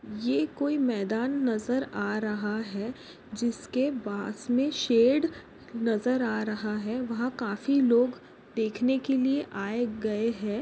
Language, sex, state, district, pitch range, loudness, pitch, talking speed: Hindi, female, Maharashtra, Pune, 215-255 Hz, -28 LUFS, 235 Hz, 135 wpm